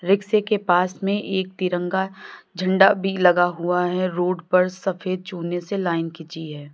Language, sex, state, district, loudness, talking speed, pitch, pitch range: Hindi, female, Uttar Pradesh, Lalitpur, -21 LUFS, 170 wpm, 185 Hz, 175-190 Hz